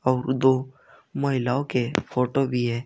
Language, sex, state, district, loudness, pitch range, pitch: Hindi, male, Uttar Pradesh, Saharanpur, -24 LUFS, 125-130 Hz, 130 Hz